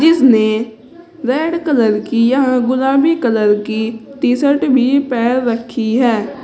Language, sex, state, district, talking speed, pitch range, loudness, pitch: Hindi, female, Uttar Pradesh, Saharanpur, 130 wpm, 230-275 Hz, -14 LUFS, 250 Hz